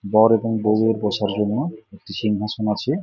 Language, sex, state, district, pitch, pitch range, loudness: Bengali, male, West Bengal, Jhargram, 105 Hz, 105-110 Hz, -21 LUFS